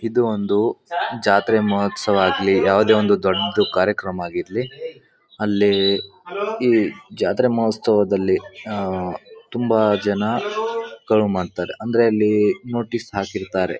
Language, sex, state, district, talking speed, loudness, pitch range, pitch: Kannada, male, Karnataka, Bijapur, 100 wpm, -20 LUFS, 100-120 Hz, 105 Hz